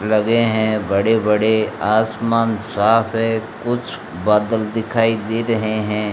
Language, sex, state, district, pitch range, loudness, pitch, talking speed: Hindi, male, Rajasthan, Bikaner, 105-115 Hz, -18 LUFS, 110 Hz, 125 wpm